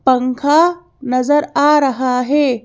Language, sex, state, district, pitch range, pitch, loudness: Hindi, female, Madhya Pradesh, Bhopal, 255-295 Hz, 275 Hz, -14 LUFS